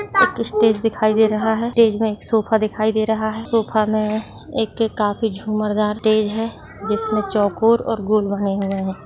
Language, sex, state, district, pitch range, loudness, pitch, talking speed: Hindi, female, Chhattisgarh, Raigarh, 210-225 Hz, -19 LUFS, 220 Hz, 185 wpm